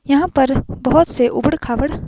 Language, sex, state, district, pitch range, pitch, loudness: Hindi, female, Himachal Pradesh, Shimla, 260-305 Hz, 280 Hz, -16 LUFS